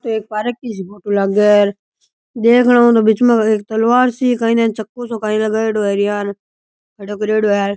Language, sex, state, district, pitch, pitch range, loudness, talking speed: Rajasthani, male, Rajasthan, Churu, 220 Hz, 205-230 Hz, -15 LUFS, 170 wpm